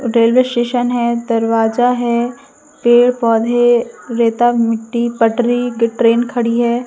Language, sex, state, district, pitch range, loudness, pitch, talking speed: Hindi, female, Madhya Pradesh, Umaria, 230-245 Hz, -14 LUFS, 240 Hz, 115 wpm